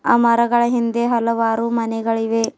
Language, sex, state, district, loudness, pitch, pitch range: Kannada, female, Karnataka, Bidar, -18 LUFS, 230 Hz, 225-235 Hz